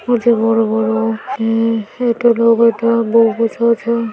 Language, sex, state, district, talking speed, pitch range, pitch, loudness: Bengali, male, West Bengal, North 24 Parganas, 145 wpm, 225-235 Hz, 230 Hz, -14 LUFS